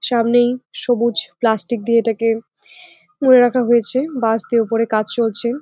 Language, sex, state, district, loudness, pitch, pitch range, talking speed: Bengali, female, West Bengal, Jalpaiguri, -16 LUFS, 235 Hz, 225-245 Hz, 140 wpm